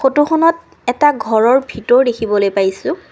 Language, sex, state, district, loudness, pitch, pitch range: Assamese, female, Assam, Kamrup Metropolitan, -14 LUFS, 245 Hz, 220-290 Hz